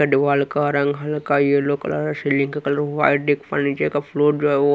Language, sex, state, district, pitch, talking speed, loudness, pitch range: Hindi, male, Haryana, Rohtak, 145 Hz, 200 wpm, -20 LUFS, 140-150 Hz